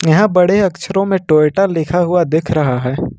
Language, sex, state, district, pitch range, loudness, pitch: Hindi, male, Jharkhand, Ranchi, 155-190 Hz, -14 LUFS, 170 Hz